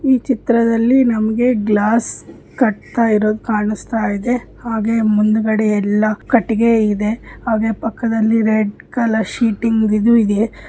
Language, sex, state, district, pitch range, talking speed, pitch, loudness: Kannada, female, Karnataka, Bijapur, 215-230 Hz, 110 wpm, 225 Hz, -16 LUFS